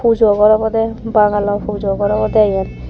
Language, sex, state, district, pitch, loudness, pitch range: Chakma, female, Tripura, Dhalai, 210 Hz, -14 LUFS, 205-220 Hz